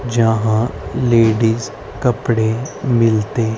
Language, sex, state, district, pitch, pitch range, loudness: Hindi, female, Haryana, Rohtak, 115 Hz, 110-120 Hz, -16 LUFS